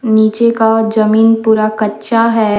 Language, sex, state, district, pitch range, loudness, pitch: Hindi, female, Jharkhand, Deoghar, 215-225 Hz, -11 LUFS, 220 Hz